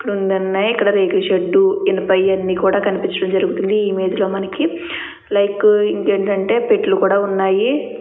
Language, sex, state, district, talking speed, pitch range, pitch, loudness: Telugu, female, Andhra Pradesh, Chittoor, 120 wpm, 195-315 Hz, 200 Hz, -16 LUFS